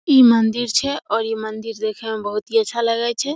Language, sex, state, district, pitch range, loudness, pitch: Maithili, female, Bihar, Samastipur, 220-240 Hz, -19 LUFS, 225 Hz